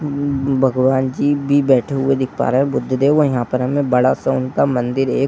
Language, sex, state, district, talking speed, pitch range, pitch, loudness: Hindi, male, Bihar, Muzaffarpur, 250 wpm, 125-140 Hz, 135 Hz, -17 LUFS